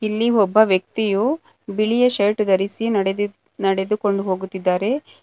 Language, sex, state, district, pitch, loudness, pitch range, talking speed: Kannada, female, Karnataka, Bangalore, 205 Hz, -20 LUFS, 195-220 Hz, 105 wpm